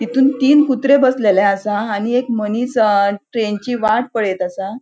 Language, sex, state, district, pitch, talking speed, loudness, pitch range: Konkani, female, Goa, North and South Goa, 220 Hz, 160 wpm, -16 LUFS, 205-255 Hz